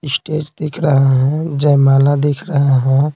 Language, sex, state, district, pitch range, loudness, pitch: Hindi, male, Bihar, Patna, 135-150 Hz, -14 LUFS, 145 Hz